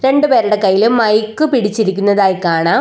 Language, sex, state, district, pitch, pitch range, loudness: Malayalam, female, Kerala, Kollam, 210 Hz, 195-240 Hz, -13 LUFS